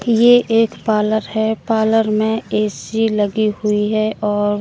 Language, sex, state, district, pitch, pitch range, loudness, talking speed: Hindi, female, Madhya Pradesh, Katni, 220 Hz, 210-225 Hz, -16 LUFS, 145 wpm